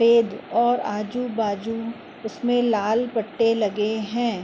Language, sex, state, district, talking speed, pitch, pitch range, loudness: Hindi, female, Uttar Pradesh, Muzaffarnagar, 120 wpm, 225 Hz, 215-235 Hz, -23 LUFS